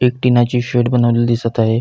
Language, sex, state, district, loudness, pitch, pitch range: Marathi, male, Maharashtra, Pune, -15 LUFS, 120 Hz, 120-125 Hz